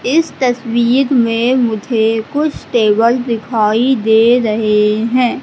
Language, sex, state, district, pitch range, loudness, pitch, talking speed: Hindi, female, Madhya Pradesh, Katni, 220-250 Hz, -13 LUFS, 235 Hz, 110 wpm